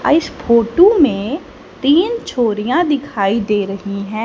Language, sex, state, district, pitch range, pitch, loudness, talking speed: Hindi, female, Haryana, Charkhi Dadri, 210-305 Hz, 235 Hz, -15 LUFS, 140 wpm